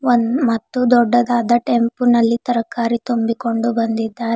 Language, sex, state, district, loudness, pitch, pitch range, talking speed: Kannada, female, Karnataka, Bidar, -17 LUFS, 235 Hz, 230-240 Hz, 110 wpm